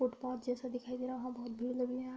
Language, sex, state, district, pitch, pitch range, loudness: Hindi, female, Uttar Pradesh, Budaun, 250 Hz, 245-255 Hz, -40 LUFS